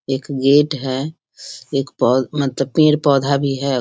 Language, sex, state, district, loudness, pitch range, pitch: Hindi, female, Bihar, Sitamarhi, -17 LUFS, 135-145 Hz, 140 Hz